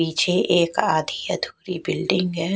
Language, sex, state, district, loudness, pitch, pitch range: Hindi, female, Chhattisgarh, Raipur, -22 LUFS, 170 Hz, 165-180 Hz